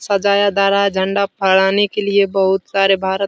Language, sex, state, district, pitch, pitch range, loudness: Hindi, male, Bihar, Supaul, 195 Hz, 195-200 Hz, -15 LUFS